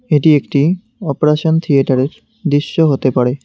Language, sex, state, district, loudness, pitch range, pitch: Bengali, male, West Bengal, Cooch Behar, -14 LUFS, 140-160 Hz, 150 Hz